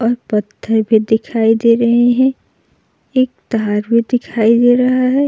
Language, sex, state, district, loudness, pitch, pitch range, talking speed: Hindi, female, Uttar Pradesh, Jalaun, -14 LUFS, 235 Hz, 225-250 Hz, 145 wpm